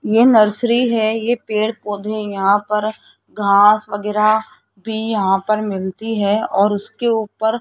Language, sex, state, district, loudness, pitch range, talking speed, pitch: Hindi, female, Rajasthan, Jaipur, -17 LUFS, 205-220 Hz, 150 wpm, 215 Hz